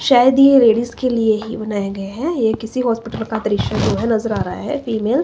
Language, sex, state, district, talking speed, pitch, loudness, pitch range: Hindi, female, Himachal Pradesh, Shimla, 250 wpm, 230 Hz, -17 LUFS, 220-255 Hz